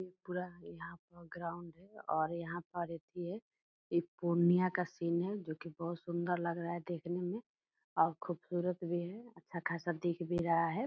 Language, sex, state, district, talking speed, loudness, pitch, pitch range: Hindi, female, Bihar, Purnia, 165 wpm, -38 LUFS, 175 Hz, 170-180 Hz